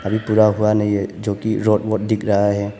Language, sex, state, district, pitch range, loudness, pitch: Hindi, male, Arunachal Pradesh, Papum Pare, 100-110 Hz, -18 LUFS, 105 Hz